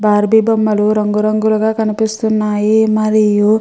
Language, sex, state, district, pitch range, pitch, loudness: Telugu, female, Andhra Pradesh, Chittoor, 210-220 Hz, 215 Hz, -13 LUFS